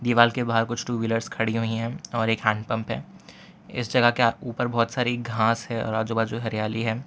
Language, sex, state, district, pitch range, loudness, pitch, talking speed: Hindi, male, Gujarat, Valsad, 115-120 Hz, -25 LUFS, 115 Hz, 240 wpm